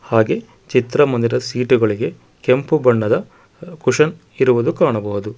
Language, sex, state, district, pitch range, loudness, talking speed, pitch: Kannada, male, Karnataka, Bangalore, 120-145 Hz, -17 LUFS, 90 wpm, 125 Hz